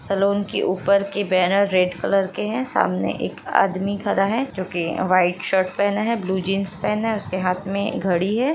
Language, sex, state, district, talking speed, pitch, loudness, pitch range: Hindi, female, Bihar, Lakhisarai, 205 wpm, 195 Hz, -21 LUFS, 185-205 Hz